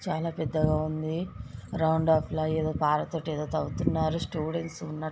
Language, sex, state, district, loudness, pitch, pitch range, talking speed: Telugu, female, Andhra Pradesh, Guntur, -29 LUFS, 155 Hz, 155-160 Hz, 105 wpm